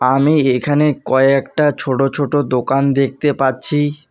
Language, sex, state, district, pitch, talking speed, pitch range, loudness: Bengali, male, West Bengal, Alipurduar, 135 Hz, 115 wpm, 130-145 Hz, -15 LUFS